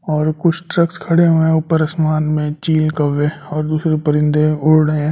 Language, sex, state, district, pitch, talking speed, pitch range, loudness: Hindi, male, Delhi, New Delhi, 155 Hz, 210 wpm, 150-160 Hz, -16 LUFS